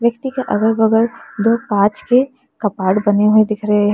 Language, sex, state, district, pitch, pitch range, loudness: Hindi, female, Uttar Pradesh, Lalitpur, 220 Hz, 210-235 Hz, -16 LUFS